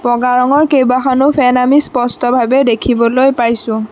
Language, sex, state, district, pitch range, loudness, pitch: Assamese, female, Assam, Sonitpur, 240-265 Hz, -11 LUFS, 250 Hz